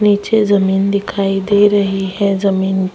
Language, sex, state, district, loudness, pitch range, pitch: Hindi, male, Delhi, New Delhi, -14 LUFS, 195-205 Hz, 200 Hz